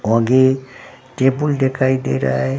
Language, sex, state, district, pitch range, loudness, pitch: Hindi, male, Bihar, Katihar, 115-130 Hz, -17 LUFS, 130 Hz